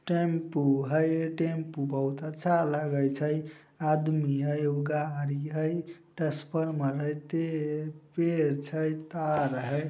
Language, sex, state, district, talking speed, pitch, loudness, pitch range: Maithili, male, Bihar, Samastipur, 115 wpm, 155 Hz, -30 LUFS, 145-160 Hz